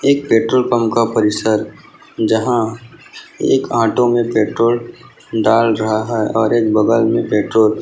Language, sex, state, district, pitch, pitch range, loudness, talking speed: Hindi, male, Maharashtra, Chandrapur, 115 Hz, 110-120 Hz, -15 LUFS, 145 wpm